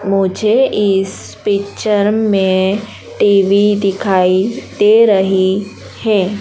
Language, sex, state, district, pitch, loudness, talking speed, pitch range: Hindi, female, Madhya Pradesh, Dhar, 200 Hz, -13 LUFS, 85 wpm, 190-210 Hz